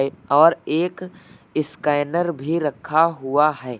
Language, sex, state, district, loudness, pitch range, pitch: Hindi, male, Uttar Pradesh, Lucknow, -20 LUFS, 145-170 Hz, 155 Hz